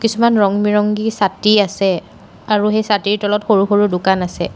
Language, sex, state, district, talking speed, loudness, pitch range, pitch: Assamese, female, Assam, Sonitpur, 170 wpm, -15 LUFS, 195-210 Hz, 205 Hz